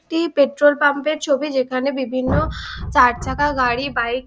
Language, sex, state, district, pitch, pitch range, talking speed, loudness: Bengali, female, West Bengal, Dakshin Dinajpur, 280 Hz, 255-290 Hz, 170 wpm, -18 LUFS